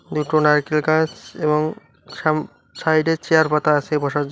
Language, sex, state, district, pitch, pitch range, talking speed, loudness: Bengali, male, West Bengal, Cooch Behar, 155 Hz, 150-160 Hz, 155 wpm, -19 LUFS